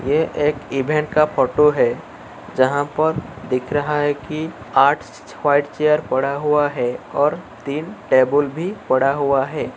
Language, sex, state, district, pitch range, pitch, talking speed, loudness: Hindi, male, Uttar Pradesh, Muzaffarnagar, 140-155 Hz, 145 Hz, 145 wpm, -19 LUFS